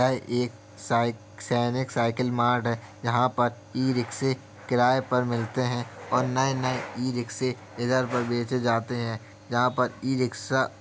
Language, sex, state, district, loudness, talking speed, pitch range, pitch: Hindi, male, Uttar Pradesh, Jalaun, -27 LUFS, 150 wpm, 115-125 Hz, 120 Hz